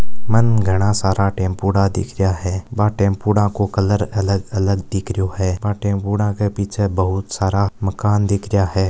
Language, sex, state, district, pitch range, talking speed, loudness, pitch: Marwari, male, Rajasthan, Nagaur, 95-105 Hz, 170 wpm, -18 LUFS, 100 Hz